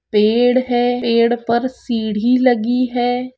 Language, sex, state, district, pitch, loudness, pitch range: Hindi, female, Rajasthan, Churu, 245 Hz, -16 LUFS, 230-250 Hz